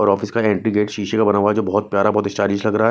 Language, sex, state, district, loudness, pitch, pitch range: Hindi, male, Chhattisgarh, Raipur, -18 LUFS, 105 Hz, 100-110 Hz